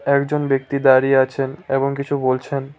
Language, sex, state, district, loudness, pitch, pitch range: Bengali, male, West Bengal, Cooch Behar, -18 LUFS, 135 Hz, 135-140 Hz